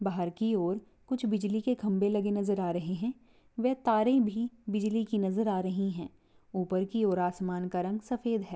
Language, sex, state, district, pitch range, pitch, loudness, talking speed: Hindi, female, Chhattisgarh, Rajnandgaon, 185-225 Hz, 205 Hz, -31 LUFS, 205 wpm